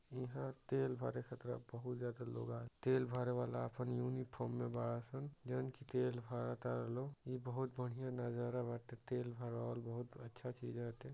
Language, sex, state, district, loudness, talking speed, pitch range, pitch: Bhojpuri, male, Uttar Pradesh, Deoria, -44 LUFS, 180 wpm, 120-130 Hz, 125 Hz